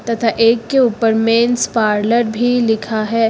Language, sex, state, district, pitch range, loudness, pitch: Hindi, female, Uttar Pradesh, Lucknow, 220-240 Hz, -15 LUFS, 230 Hz